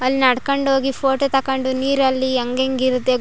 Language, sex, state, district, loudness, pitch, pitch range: Kannada, female, Karnataka, Chamarajanagar, -18 LUFS, 260 Hz, 260-270 Hz